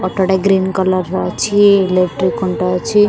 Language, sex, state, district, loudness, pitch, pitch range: Odia, female, Odisha, Khordha, -14 LUFS, 190 Hz, 180-195 Hz